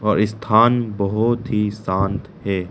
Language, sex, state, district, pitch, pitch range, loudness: Hindi, male, Arunachal Pradesh, Lower Dibang Valley, 105 Hz, 100-115 Hz, -19 LUFS